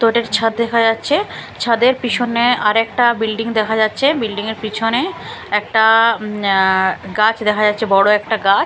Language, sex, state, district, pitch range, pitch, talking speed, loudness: Bengali, female, Bihar, Katihar, 210-230 Hz, 220 Hz, 160 wpm, -15 LUFS